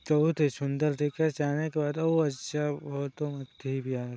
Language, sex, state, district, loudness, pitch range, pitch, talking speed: Hindi, male, Chhattisgarh, Sarguja, -30 LUFS, 140-150 Hz, 145 Hz, 85 wpm